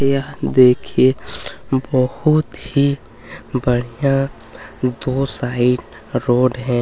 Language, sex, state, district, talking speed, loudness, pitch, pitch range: Hindi, male, Chhattisgarh, Kabirdham, 80 wpm, -18 LUFS, 130 Hz, 120-135 Hz